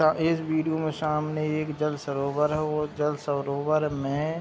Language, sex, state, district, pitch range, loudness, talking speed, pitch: Hindi, male, Bihar, Saharsa, 145-155 Hz, -27 LUFS, 190 wpm, 150 Hz